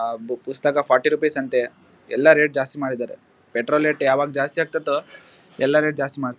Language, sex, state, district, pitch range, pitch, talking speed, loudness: Kannada, male, Karnataka, Bellary, 125-150 Hz, 135 Hz, 180 wpm, -21 LUFS